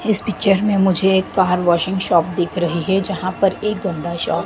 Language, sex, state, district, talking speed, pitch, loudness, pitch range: Hindi, female, Madhya Pradesh, Dhar, 230 wpm, 190 Hz, -17 LUFS, 175-195 Hz